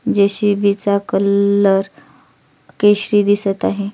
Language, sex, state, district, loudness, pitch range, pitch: Marathi, female, Maharashtra, Solapur, -15 LUFS, 200-205 Hz, 200 Hz